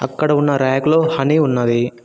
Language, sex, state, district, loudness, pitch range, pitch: Telugu, male, Telangana, Mahabubabad, -16 LUFS, 125-155 Hz, 135 Hz